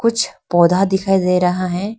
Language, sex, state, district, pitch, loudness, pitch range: Hindi, female, Arunachal Pradesh, Lower Dibang Valley, 185 Hz, -16 LUFS, 180-195 Hz